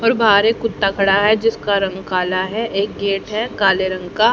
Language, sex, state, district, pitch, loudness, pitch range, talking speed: Hindi, female, Haryana, Jhajjar, 200 Hz, -17 LUFS, 190-220 Hz, 220 wpm